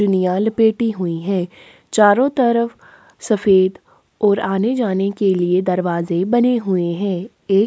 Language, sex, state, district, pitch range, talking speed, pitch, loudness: Hindi, female, Chhattisgarh, Kabirdham, 185-225 Hz, 125 wpm, 200 Hz, -17 LUFS